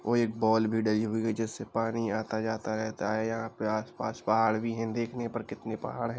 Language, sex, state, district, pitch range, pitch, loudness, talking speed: Hindi, male, Uttar Pradesh, Jalaun, 110-115 Hz, 110 Hz, -31 LUFS, 230 wpm